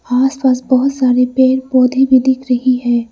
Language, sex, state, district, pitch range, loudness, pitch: Hindi, female, Arunachal Pradesh, Lower Dibang Valley, 250-260 Hz, -13 LUFS, 255 Hz